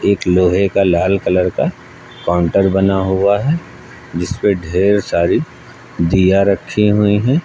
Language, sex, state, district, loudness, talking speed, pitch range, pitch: Hindi, male, Uttar Pradesh, Lucknow, -15 LUFS, 145 wpm, 90-105 Hz, 100 Hz